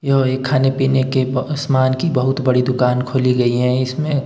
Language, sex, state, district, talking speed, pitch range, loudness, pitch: Hindi, male, Himachal Pradesh, Shimla, 210 wpm, 125-135 Hz, -17 LUFS, 130 Hz